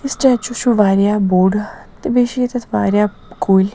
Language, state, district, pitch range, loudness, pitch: Kashmiri, Punjab, Kapurthala, 195-245 Hz, -16 LUFS, 210 Hz